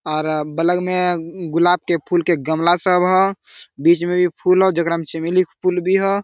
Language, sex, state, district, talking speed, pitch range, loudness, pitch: Hindi, male, Jharkhand, Sahebganj, 210 wpm, 165-180 Hz, -18 LUFS, 175 Hz